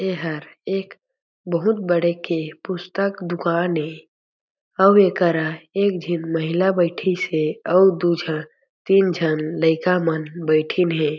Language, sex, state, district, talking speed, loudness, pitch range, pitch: Chhattisgarhi, male, Chhattisgarh, Jashpur, 130 wpm, -20 LUFS, 160-185 Hz, 175 Hz